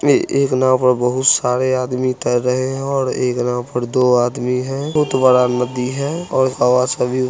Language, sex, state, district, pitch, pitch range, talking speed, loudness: Hindi, male, Bihar, Muzaffarpur, 130 Hz, 125-130 Hz, 205 wpm, -17 LUFS